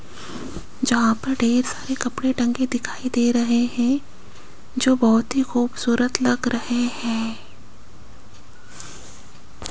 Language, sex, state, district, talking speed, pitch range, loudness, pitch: Hindi, female, Rajasthan, Jaipur, 105 wpm, 225-255 Hz, -21 LUFS, 240 Hz